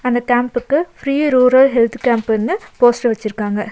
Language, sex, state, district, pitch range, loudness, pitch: Tamil, female, Tamil Nadu, Nilgiris, 225-255 Hz, -15 LUFS, 245 Hz